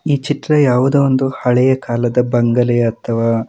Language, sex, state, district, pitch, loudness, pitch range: Kannada, male, Karnataka, Mysore, 125 Hz, -15 LUFS, 120-135 Hz